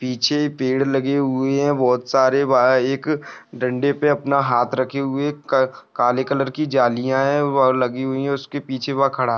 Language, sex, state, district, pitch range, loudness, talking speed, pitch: Hindi, male, Maharashtra, Nagpur, 130-140 Hz, -19 LUFS, 200 wpm, 135 Hz